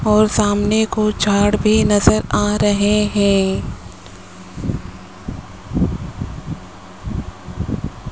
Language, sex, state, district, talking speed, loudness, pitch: Hindi, male, Rajasthan, Jaipur, 65 wpm, -17 LUFS, 205 Hz